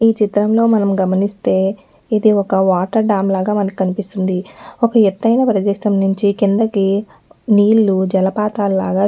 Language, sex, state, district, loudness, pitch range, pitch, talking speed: Telugu, female, Telangana, Nalgonda, -15 LUFS, 195-215 Hz, 205 Hz, 120 wpm